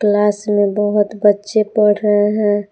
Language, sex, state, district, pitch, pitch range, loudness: Hindi, female, Jharkhand, Palamu, 210 Hz, 205-210 Hz, -15 LUFS